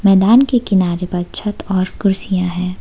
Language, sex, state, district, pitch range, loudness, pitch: Hindi, female, Jharkhand, Ranchi, 180-205 Hz, -16 LUFS, 190 Hz